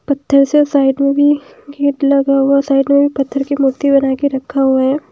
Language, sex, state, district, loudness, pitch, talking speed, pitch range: Hindi, female, Himachal Pradesh, Shimla, -13 LUFS, 275 Hz, 225 wpm, 275-285 Hz